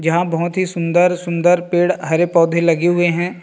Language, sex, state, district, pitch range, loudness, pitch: Hindi, male, Chhattisgarh, Rajnandgaon, 170-175 Hz, -16 LUFS, 175 Hz